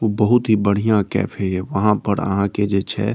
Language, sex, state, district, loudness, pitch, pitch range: Maithili, male, Bihar, Saharsa, -19 LUFS, 100 Hz, 100-105 Hz